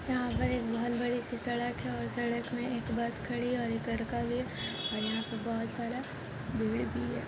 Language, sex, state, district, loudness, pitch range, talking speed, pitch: Hindi, female, Jharkhand, Jamtara, -34 LUFS, 195-240 Hz, 230 wpm, 235 Hz